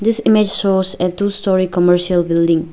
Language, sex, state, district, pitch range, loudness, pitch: English, female, Arunachal Pradesh, Lower Dibang Valley, 175-200 Hz, -15 LUFS, 185 Hz